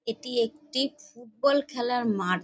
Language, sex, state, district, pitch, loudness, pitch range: Bengali, female, West Bengal, North 24 Parganas, 245 Hz, -28 LUFS, 225-280 Hz